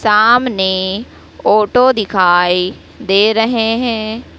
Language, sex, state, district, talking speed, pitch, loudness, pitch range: Hindi, female, Madhya Pradesh, Dhar, 80 wpm, 215 Hz, -13 LUFS, 190-235 Hz